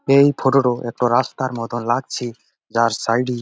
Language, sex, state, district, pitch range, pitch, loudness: Bengali, male, West Bengal, Jalpaiguri, 115-130 Hz, 120 Hz, -19 LUFS